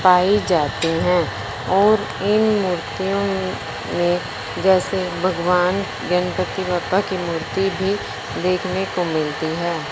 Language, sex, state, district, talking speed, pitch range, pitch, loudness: Hindi, female, Punjab, Fazilka, 110 wpm, 175-190 Hz, 180 Hz, -20 LUFS